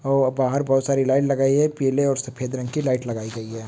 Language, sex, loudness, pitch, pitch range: Hindi, male, -22 LUFS, 135 Hz, 130-135 Hz